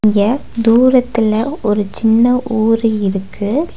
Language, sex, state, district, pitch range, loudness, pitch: Tamil, female, Tamil Nadu, Nilgiris, 210-245 Hz, -14 LUFS, 225 Hz